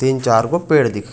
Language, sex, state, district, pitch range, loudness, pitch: Chhattisgarhi, male, Chhattisgarh, Raigarh, 115-150 Hz, -16 LUFS, 130 Hz